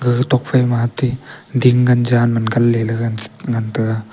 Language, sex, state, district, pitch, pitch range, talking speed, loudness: Wancho, male, Arunachal Pradesh, Longding, 120 Hz, 115-125 Hz, 205 wpm, -16 LUFS